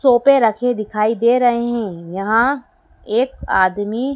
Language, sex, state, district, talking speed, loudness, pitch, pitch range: Hindi, female, Madhya Pradesh, Dhar, 130 wpm, -17 LUFS, 235 Hz, 215-250 Hz